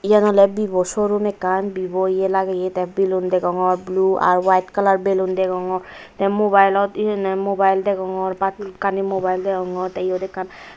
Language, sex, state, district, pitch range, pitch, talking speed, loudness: Chakma, female, Tripura, Unakoti, 185-195 Hz, 190 Hz, 165 wpm, -19 LUFS